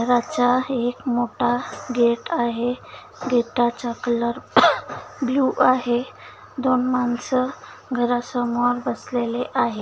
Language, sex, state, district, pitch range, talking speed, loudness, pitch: Marathi, female, Maharashtra, Dhule, 240-255 Hz, 100 wpm, -22 LUFS, 245 Hz